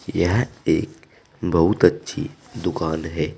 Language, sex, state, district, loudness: Hindi, male, Uttar Pradesh, Saharanpur, -22 LUFS